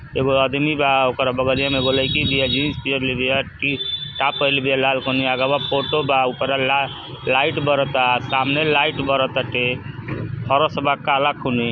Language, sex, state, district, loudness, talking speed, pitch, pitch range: Bhojpuri, male, Uttar Pradesh, Ghazipur, -19 LUFS, 165 wpm, 135 Hz, 130-140 Hz